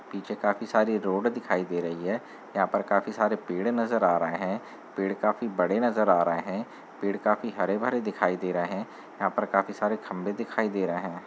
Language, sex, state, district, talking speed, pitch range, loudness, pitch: Hindi, male, Uttar Pradesh, Muzaffarnagar, 220 wpm, 90-110 Hz, -28 LUFS, 100 Hz